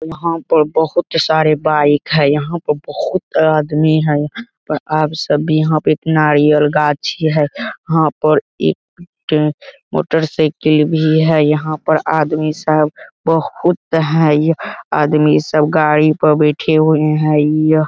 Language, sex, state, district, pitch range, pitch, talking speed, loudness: Hindi, male, Bihar, Araria, 150-160 Hz, 155 Hz, 150 wpm, -14 LUFS